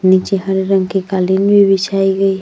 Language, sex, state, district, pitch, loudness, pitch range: Hindi, female, Uttar Pradesh, Jyotiba Phule Nagar, 195 Hz, -13 LUFS, 190-195 Hz